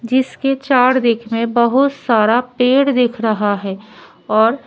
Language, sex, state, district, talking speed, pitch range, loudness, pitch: Hindi, female, Delhi, New Delhi, 140 wpm, 220-260 Hz, -15 LUFS, 240 Hz